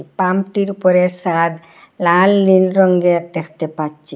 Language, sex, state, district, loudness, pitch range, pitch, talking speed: Bengali, female, Assam, Hailakandi, -15 LUFS, 165-190 Hz, 180 Hz, 115 wpm